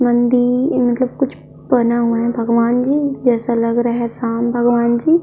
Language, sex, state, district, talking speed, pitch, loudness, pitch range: Hindi, female, Chhattisgarh, Kabirdham, 185 wpm, 240 Hz, -16 LUFS, 235-250 Hz